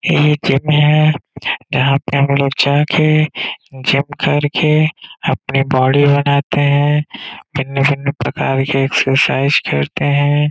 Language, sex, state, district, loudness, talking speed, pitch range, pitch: Hindi, male, Uttar Pradesh, Gorakhpur, -14 LUFS, 120 wpm, 135-150 Hz, 140 Hz